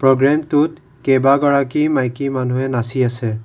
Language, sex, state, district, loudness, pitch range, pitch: Assamese, male, Assam, Kamrup Metropolitan, -17 LUFS, 130-140 Hz, 135 Hz